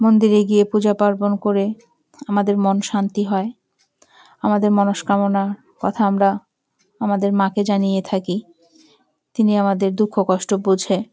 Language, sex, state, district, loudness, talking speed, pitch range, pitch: Bengali, female, West Bengal, Jalpaiguri, -19 LUFS, 125 wpm, 195-210 Hz, 200 Hz